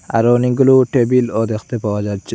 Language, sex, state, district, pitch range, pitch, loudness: Bengali, male, Assam, Hailakandi, 110-125 Hz, 120 Hz, -15 LUFS